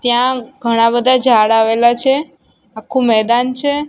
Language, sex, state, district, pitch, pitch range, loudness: Gujarati, female, Gujarat, Gandhinagar, 240 Hz, 230-260 Hz, -13 LUFS